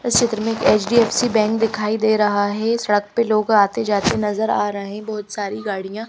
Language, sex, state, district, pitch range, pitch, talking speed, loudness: Hindi, female, Haryana, Rohtak, 205-225 Hz, 215 Hz, 205 wpm, -19 LUFS